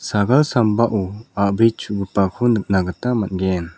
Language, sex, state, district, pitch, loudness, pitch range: Garo, male, Meghalaya, South Garo Hills, 100 Hz, -19 LUFS, 95-115 Hz